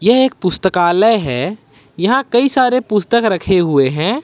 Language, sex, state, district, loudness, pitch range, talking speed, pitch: Hindi, male, Jharkhand, Ranchi, -14 LUFS, 165-245 Hz, 155 wpm, 195 Hz